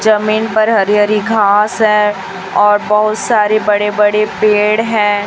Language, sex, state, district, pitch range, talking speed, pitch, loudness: Hindi, female, Chhattisgarh, Raipur, 205-215 Hz, 150 wpm, 210 Hz, -12 LUFS